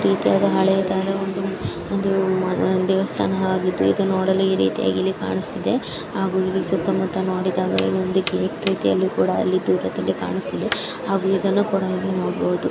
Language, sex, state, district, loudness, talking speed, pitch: Kannada, male, Karnataka, Dharwad, -21 LUFS, 125 wpm, 190 Hz